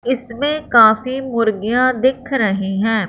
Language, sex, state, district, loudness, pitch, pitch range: Hindi, female, Punjab, Fazilka, -16 LUFS, 240 Hz, 220-260 Hz